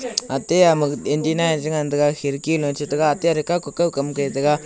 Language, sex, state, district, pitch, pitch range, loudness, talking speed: Wancho, male, Arunachal Pradesh, Longding, 150 Hz, 145-165 Hz, -20 LUFS, 180 wpm